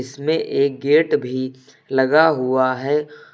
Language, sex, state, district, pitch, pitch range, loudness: Hindi, male, Uttar Pradesh, Lucknow, 140 Hz, 130-150 Hz, -19 LUFS